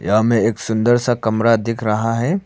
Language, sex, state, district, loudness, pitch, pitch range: Hindi, male, Arunachal Pradesh, Papum Pare, -17 LUFS, 115 Hz, 110-120 Hz